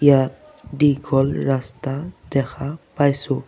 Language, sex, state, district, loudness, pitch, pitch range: Assamese, male, Assam, Sonitpur, -21 LUFS, 140 Hz, 135-145 Hz